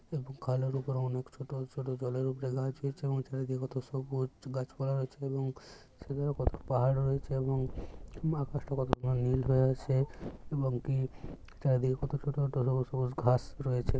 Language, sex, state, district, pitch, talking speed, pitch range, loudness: Bengali, male, West Bengal, Jhargram, 130 Hz, 170 wpm, 130-135 Hz, -34 LUFS